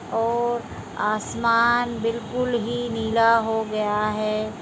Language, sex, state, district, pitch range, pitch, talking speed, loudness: Hindi, female, Bihar, Begusarai, 215-235 Hz, 230 Hz, 105 wpm, -23 LUFS